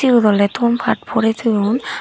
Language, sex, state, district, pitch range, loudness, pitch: Chakma, female, Tripura, Dhalai, 210-240 Hz, -16 LUFS, 225 Hz